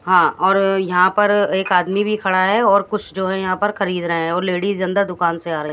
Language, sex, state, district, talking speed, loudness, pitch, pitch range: Hindi, female, Haryana, Jhajjar, 260 wpm, -17 LUFS, 190 Hz, 180-200 Hz